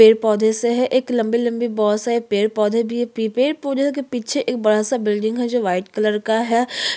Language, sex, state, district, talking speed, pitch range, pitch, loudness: Hindi, female, Chhattisgarh, Sukma, 250 wpm, 215-245 Hz, 230 Hz, -19 LUFS